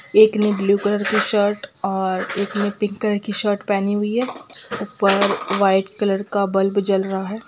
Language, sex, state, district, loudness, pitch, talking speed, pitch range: Hindi, female, Bihar, Gopalganj, -19 LUFS, 205 Hz, 185 wpm, 195-210 Hz